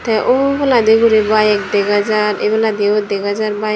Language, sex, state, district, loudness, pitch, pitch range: Chakma, female, Tripura, Dhalai, -14 LUFS, 215 Hz, 210-220 Hz